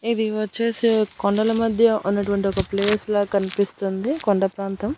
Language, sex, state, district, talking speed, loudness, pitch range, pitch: Telugu, female, Andhra Pradesh, Annamaya, 135 wpm, -21 LUFS, 200-225 Hz, 205 Hz